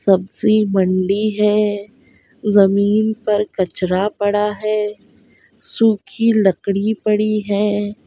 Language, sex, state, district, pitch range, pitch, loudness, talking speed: Hindi, female, Bihar, Saharsa, 200-215 Hz, 210 Hz, -17 LUFS, 80 wpm